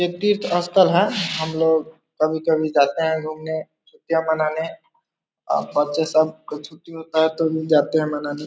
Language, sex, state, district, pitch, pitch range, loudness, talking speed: Hindi, male, Bihar, East Champaran, 160 Hz, 155-170 Hz, -20 LUFS, 175 wpm